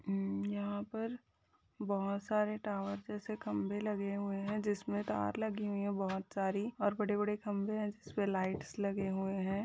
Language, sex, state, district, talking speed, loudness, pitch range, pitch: Hindi, female, Uttar Pradesh, Jyotiba Phule Nagar, 180 wpm, -38 LUFS, 195-210 Hz, 200 Hz